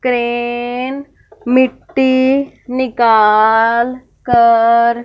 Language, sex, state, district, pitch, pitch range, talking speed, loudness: Hindi, female, Punjab, Fazilka, 240 Hz, 235-260 Hz, 50 wpm, -13 LUFS